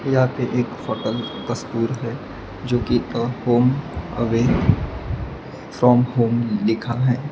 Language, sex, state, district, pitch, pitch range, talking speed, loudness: Hindi, male, Maharashtra, Gondia, 120 Hz, 115-125 Hz, 125 wpm, -21 LUFS